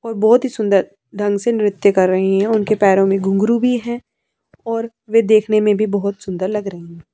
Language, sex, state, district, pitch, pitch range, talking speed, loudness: Hindi, female, Punjab, Pathankot, 210 Hz, 195-230 Hz, 220 wpm, -16 LUFS